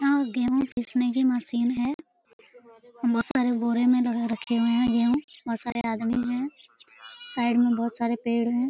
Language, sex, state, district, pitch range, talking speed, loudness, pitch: Hindi, female, Bihar, Lakhisarai, 235-260 Hz, 170 wpm, -26 LUFS, 245 Hz